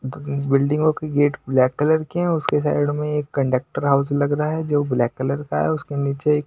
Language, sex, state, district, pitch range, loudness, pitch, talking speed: Hindi, male, Maharashtra, Washim, 140-150 Hz, -21 LUFS, 145 Hz, 225 wpm